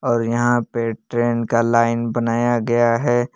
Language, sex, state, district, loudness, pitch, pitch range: Hindi, male, Jharkhand, Palamu, -19 LUFS, 120 Hz, 115-120 Hz